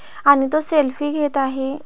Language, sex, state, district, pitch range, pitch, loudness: Marathi, female, Maharashtra, Pune, 275-300 Hz, 290 Hz, -18 LUFS